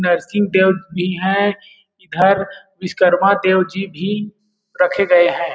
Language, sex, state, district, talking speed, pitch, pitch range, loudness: Hindi, male, Chhattisgarh, Balrampur, 130 wpm, 190 Hz, 180-200 Hz, -16 LUFS